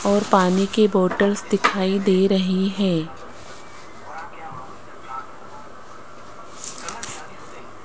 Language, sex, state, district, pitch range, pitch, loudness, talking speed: Hindi, female, Rajasthan, Jaipur, 185-205 Hz, 195 Hz, -20 LUFS, 60 wpm